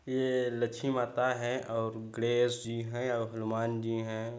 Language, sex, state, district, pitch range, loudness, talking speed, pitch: Hindi, male, Chhattisgarh, Balrampur, 115-125 Hz, -33 LUFS, 165 wpm, 120 Hz